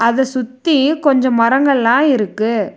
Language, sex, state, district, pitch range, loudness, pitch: Tamil, female, Tamil Nadu, Nilgiris, 230-280 Hz, -14 LUFS, 255 Hz